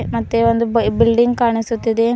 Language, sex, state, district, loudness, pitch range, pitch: Kannada, female, Karnataka, Bidar, -16 LUFS, 230-235 Hz, 230 Hz